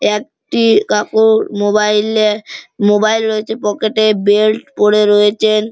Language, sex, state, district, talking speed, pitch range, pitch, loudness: Bengali, male, West Bengal, Malda, 115 wpm, 210-220 Hz, 215 Hz, -13 LUFS